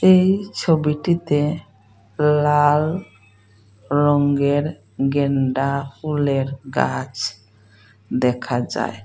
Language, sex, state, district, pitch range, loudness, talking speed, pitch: Bengali, female, Assam, Hailakandi, 110-150 Hz, -20 LUFS, 60 wpm, 140 Hz